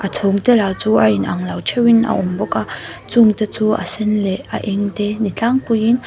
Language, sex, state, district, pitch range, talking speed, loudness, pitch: Mizo, female, Mizoram, Aizawl, 195-230 Hz, 225 wpm, -16 LUFS, 210 Hz